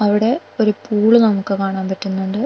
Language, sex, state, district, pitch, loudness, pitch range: Malayalam, female, Kerala, Wayanad, 210 Hz, -17 LUFS, 195-220 Hz